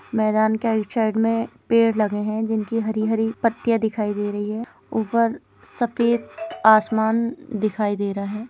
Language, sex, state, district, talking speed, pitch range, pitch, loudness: Hindi, female, Chhattisgarh, Bilaspur, 160 wpm, 215-230 Hz, 220 Hz, -22 LUFS